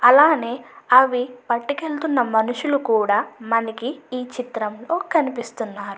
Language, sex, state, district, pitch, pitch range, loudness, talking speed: Telugu, female, Andhra Pradesh, Anantapur, 245 Hz, 225-280 Hz, -21 LUFS, 90 wpm